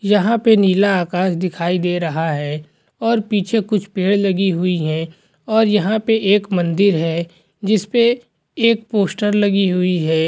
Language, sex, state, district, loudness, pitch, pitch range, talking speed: Hindi, male, Jharkhand, Jamtara, -17 LUFS, 195 Hz, 175-210 Hz, 155 wpm